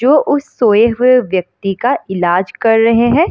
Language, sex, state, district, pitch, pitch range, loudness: Hindi, female, Bihar, Madhepura, 230 Hz, 195-255 Hz, -13 LUFS